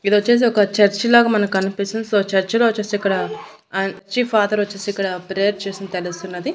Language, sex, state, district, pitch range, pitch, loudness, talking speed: Telugu, female, Andhra Pradesh, Annamaya, 195-215 Hz, 205 Hz, -19 LUFS, 155 wpm